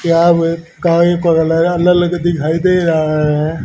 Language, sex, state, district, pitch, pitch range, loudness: Hindi, male, Haryana, Rohtak, 170 Hz, 160-175 Hz, -13 LUFS